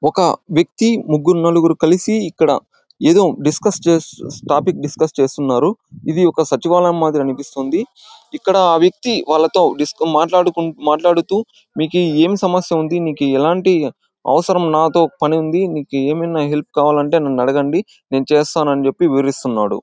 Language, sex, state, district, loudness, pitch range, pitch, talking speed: Telugu, male, Andhra Pradesh, Anantapur, -15 LUFS, 150-175 Hz, 160 Hz, 130 wpm